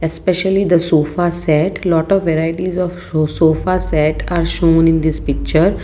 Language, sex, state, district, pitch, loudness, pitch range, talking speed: English, female, Gujarat, Valsad, 165 Hz, -15 LUFS, 160-180 Hz, 155 wpm